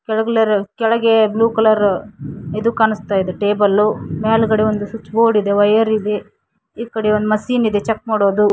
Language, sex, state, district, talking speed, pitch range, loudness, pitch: Kannada, female, Karnataka, Koppal, 155 wpm, 205-225 Hz, -16 LUFS, 215 Hz